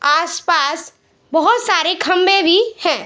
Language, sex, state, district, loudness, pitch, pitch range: Hindi, female, Bihar, Saharsa, -15 LUFS, 345 Hz, 320-390 Hz